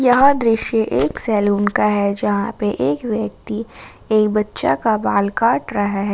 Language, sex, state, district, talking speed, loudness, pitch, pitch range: Hindi, female, Jharkhand, Ranchi, 165 wpm, -18 LUFS, 215 Hz, 205-230 Hz